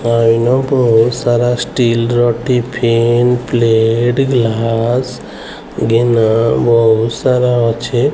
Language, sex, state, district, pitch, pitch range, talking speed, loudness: Odia, male, Odisha, Sambalpur, 120 Hz, 115-125 Hz, 95 wpm, -13 LUFS